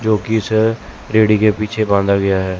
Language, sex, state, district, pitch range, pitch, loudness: Hindi, male, Chandigarh, Chandigarh, 100-110 Hz, 105 Hz, -15 LUFS